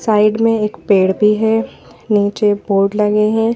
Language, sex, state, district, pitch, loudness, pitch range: Hindi, female, Madhya Pradesh, Bhopal, 210 Hz, -14 LUFS, 205-220 Hz